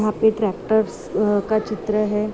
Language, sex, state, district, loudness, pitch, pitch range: Hindi, female, Chhattisgarh, Balrampur, -21 LUFS, 215 Hz, 210-215 Hz